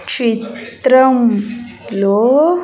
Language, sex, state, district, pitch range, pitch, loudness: Telugu, female, Andhra Pradesh, Sri Satya Sai, 225-260 Hz, 235 Hz, -13 LUFS